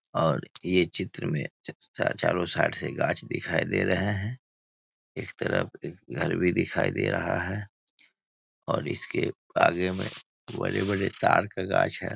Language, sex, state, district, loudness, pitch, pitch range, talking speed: Hindi, male, Bihar, Muzaffarpur, -28 LUFS, 90 Hz, 90-100 Hz, 150 wpm